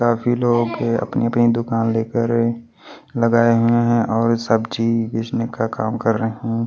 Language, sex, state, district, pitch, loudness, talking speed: Hindi, male, Delhi, New Delhi, 115 Hz, -19 LUFS, 155 wpm